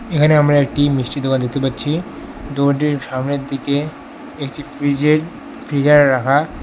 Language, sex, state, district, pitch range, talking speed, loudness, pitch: Bengali, male, West Bengal, Alipurduar, 135-150 Hz, 125 wpm, -17 LUFS, 140 Hz